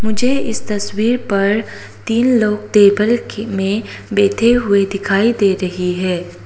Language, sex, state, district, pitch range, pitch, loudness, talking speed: Hindi, female, Arunachal Pradesh, Papum Pare, 195-230 Hz, 210 Hz, -16 LUFS, 140 wpm